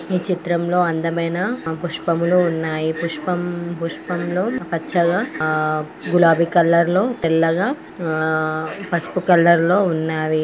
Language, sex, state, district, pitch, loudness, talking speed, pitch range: Telugu, female, Andhra Pradesh, Srikakulam, 170 Hz, -19 LUFS, 100 wpm, 160-175 Hz